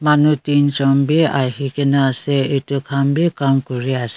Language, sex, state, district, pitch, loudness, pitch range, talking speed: Nagamese, female, Nagaland, Kohima, 140 Hz, -17 LUFS, 135-145 Hz, 145 wpm